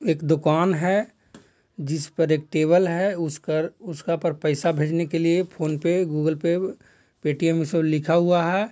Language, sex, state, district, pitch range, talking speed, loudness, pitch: Hindi, male, Bihar, Jahanabad, 155-175 Hz, 170 wpm, -23 LUFS, 165 Hz